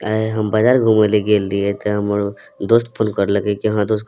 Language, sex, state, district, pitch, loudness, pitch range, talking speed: Maithili, male, Bihar, Madhepura, 105 Hz, -17 LUFS, 100-110 Hz, 235 wpm